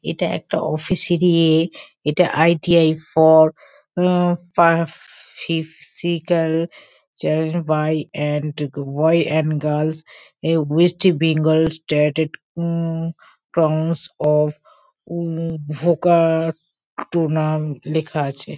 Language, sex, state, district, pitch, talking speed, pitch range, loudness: Bengali, female, West Bengal, Kolkata, 160 Hz, 95 wpm, 155-170 Hz, -19 LUFS